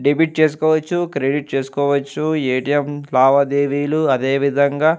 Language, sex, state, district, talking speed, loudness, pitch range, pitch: Telugu, male, Andhra Pradesh, Anantapur, 95 wpm, -17 LUFS, 140-155 Hz, 140 Hz